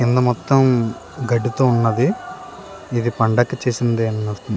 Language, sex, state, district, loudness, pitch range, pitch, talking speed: Telugu, male, Andhra Pradesh, Srikakulam, -19 LUFS, 115-125 Hz, 120 Hz, 120 wpm